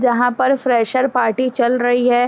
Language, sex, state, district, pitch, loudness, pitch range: Hindi, female, Uttar Pradesh, Jyotiba Phule Nagar, 245 Hz, -16 LUFS, 245-255 Hz